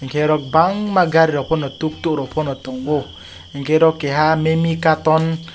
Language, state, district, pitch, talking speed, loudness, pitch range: Kokborok, Tripura, West Tripura, 155 Hz, 130 wpm, -17 LUFS, 140-160 Hz